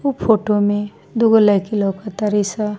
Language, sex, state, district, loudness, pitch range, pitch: Bhojpuri, female, Bihar, East Champaran, -17 LUFS, 205-220 Hz, 210 Hz